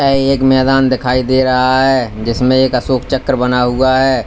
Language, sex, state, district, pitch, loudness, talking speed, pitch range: Hindi, male, Uttar Pradesh, Lalitpur, 130 Hz, -13 LUFS, 195 wpm, 125-135 Hz